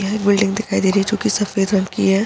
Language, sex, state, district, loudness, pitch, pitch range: Hindi, female, Bihar, Saharsa, -18 LUFS, 200 Hz, 195-210 Hz